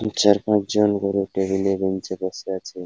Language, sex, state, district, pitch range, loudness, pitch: Bengali, male, West Bengal, Paschim Medinipur, 95-105 Hz, -22 LUFS, 95 Hz